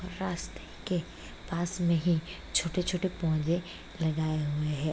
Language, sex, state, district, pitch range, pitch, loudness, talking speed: Hindi, female, Bihar, East Champaran, 155-180 Hz, 170 Hz, -31 LUFS, 120 wpm